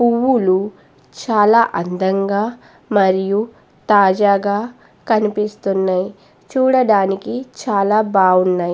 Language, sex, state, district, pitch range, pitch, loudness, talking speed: Telugu, female, Andhra Pradesh, Guntur, 190-220 Hz, 200 Hz, -16 LUFS, 60 wpm